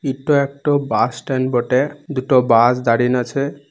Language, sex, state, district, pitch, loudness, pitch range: Bengali, male, West Bengal, Purulia, 130 Hz, -17 LUFS, 125-140 Hz